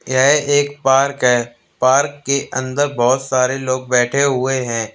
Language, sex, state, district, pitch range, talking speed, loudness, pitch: Hindi, male, Uttar Pradesh, Lalitpur, 125-140 Hz, 155 wpm, -16 LUFS, 130 Hz